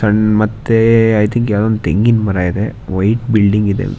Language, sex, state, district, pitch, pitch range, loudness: Kannada, male, Karnataka, Shimoga, 110 Hz, 105-115 Hz, -13 LUFS